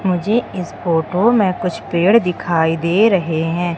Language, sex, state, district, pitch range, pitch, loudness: Hindi, female, Madhya Pradesh, Umaria, 170-195 Hz, 180 Hz, -16 LUFS